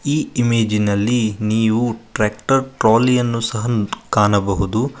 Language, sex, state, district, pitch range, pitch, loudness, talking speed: Kannada, male, Karnataka, Koppal, 105-120 Hz, 115 Hz, -18 LUFS, 85 wpm